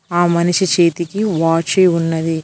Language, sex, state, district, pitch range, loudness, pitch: Telugu, female, Telangana, Mahabubabad, 165-180 Hz, -15 LUFS, 170 Hz